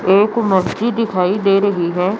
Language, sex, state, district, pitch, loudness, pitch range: Hindi, female, Chandigarh, Chandigarh, 195 Hz, -16 LUFS, 185-215 Hz